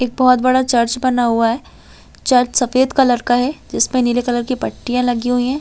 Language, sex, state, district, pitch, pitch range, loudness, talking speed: Hindi, female, Chhattisgarh, Raigarh, 250 Hz, 245-255 Hz, -16 LUFS, 215 wpm